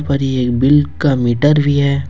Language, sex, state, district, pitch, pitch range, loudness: Hindi, male, Jharkhand, Ranchi, 140 Hz, 130-145 Hz, -14 LUFS